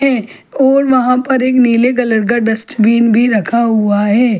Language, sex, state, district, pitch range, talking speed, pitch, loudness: Hindi, female, Chhattisgarh, Jashpur, 225-255 Hz, 165 wpm, 235 Hz, -12 LUFS